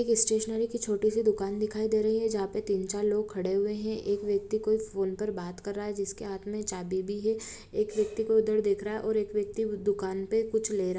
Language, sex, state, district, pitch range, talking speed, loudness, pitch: Hindi, female, Jharkhand, Jamtara, 200-220 Hz, 230 wpm, -30 LUFS, 210 Hz